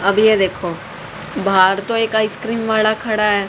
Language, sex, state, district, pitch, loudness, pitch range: Hindi, female, Haryana, Rohtak, 215 Hz, -16 LUFS, 200-220 Hz